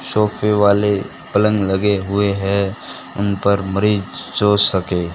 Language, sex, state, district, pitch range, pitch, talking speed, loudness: Hindi, male, Rajasthan, Bikaner, 95-105 Hz, 100 Hz, 115 wpm, -17 LUFS